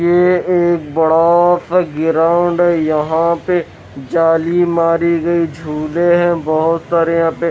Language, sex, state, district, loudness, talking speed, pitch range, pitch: Hindi, male, Bihar, West Champaran, -14 LUFS, 135 wpm, 160-175 Hz, 170 Hz